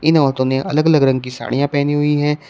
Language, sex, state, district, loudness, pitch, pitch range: Hindi, male, Uttar Pradesh, Shamli, -16 LUFS, 145 Hz, 135-150 Hz